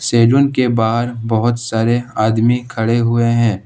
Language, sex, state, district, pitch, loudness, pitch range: Hindi, male, Jharkhand, Ranchi, 115 Hz, -15 LUFS, 115-120 Hz